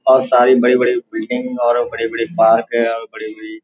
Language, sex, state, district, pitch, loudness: Hindi, male, Uttar Pradesh, Hamirpur, 125 Hz, -15 LUFS